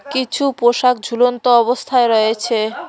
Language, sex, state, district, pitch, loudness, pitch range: Bengali, female, West Bengal, Cooch Behar, 245 Hz, -15 LUFS, 235-250 Hz